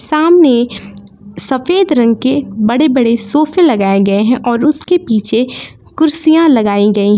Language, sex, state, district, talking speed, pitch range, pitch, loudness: Hindi, female, Jharkhand, Palamu, 150 wpm, 210-305 Hz, 245 Hz, -11 LUFS